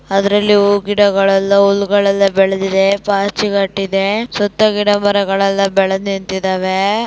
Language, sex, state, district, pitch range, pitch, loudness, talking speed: Kannada, female, Karnataka, Dakshina Kannada, 195-205 Hz, 200 Hz, -14 LUFS, 100 wpm